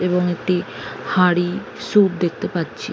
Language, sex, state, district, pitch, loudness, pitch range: Bengali, female, West Bengal, Jalpaiguri, 180 Hz, -20 LUFS, 175-185 Hz